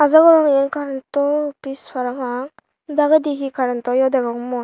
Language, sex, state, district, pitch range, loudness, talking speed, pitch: Chakma, female, Tripura, Unakoti, 255-295 Hz, -18 LUFS, 130 wpm, 275 Hz